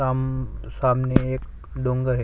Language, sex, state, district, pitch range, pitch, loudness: Hindi, male, Chhattisgarh, Sukma, 125-130 Hz, 130 Hz, -24 LUFS